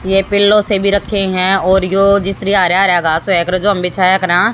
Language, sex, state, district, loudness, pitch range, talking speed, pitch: Hindi, female, Haryana, Jhajjar, -11 LUFS, 185-200 Hz, 235 wpm, 195 Hz